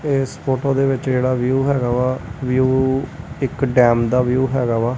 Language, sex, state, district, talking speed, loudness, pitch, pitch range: Punjabi, male, Punjab, Kapurthala, 180 wpm, -18 LUFS, 130 Hz, 125-135 Hz